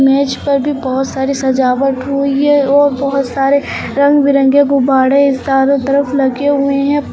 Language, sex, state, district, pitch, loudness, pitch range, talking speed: Hindi, female, Uttar Pradesh, Lucknow, 275 Hz, -12 LUFS, 270-280 Hz, 160 wpm